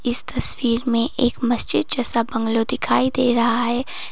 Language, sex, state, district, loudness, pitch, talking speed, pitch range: Hindi, female, Sikkim, Gangtok, -18 LUFS, 240 Hz, 160 wpm, 235-255 Hz